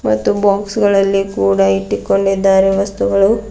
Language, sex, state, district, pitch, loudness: Kannada, female, Karnataka, Bidar, 195 Hz, -14 LUFS